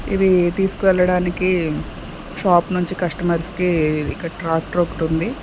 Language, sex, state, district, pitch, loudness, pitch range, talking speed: Telugu, female, Andhra Pradesh, Sri Satya Sai, 175 Hz, -19 LUFS, 165-185 Hz, 110 wpm